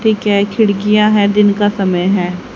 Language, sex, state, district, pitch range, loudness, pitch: Hindi, female, Haryana, Jhajjar, 195-210 Hz, -13 LUFS, 205 Hz